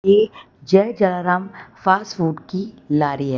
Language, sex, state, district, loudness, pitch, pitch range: Hindi, female, Gujarat, Valsad, -19 LUFS, 190 Hz, 160-195 Hz